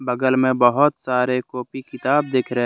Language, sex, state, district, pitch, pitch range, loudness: Hindi, male, Jharkhand, Deoghar, 130 Hz, 125-130 Hz, -19 LUFS